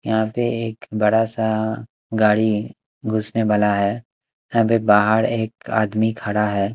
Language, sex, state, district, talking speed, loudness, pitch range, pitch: Hindi, male, Chandigarh, Chandigarh, 140 wpm, -20 LUFS, 105-110 Hz, 110 Hz